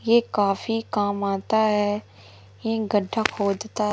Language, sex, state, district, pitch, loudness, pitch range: Hindi, female, Madhya Pradesh, Umaria, 205 Hz, -24 LUFS, 200-220 Hz